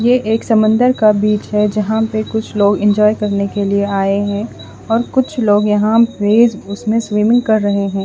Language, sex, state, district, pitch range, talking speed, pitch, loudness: Hindi, female, Odisha, Khordha, 205-225 Hz, 195 wpm, 210 Hz, -14 LUFS